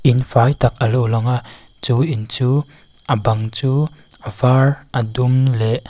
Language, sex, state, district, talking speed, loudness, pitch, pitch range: Mizo, female, Mizoram, Aizawl, 175 wpm, -17 LUFS, 125 Hz, 115-135 Hz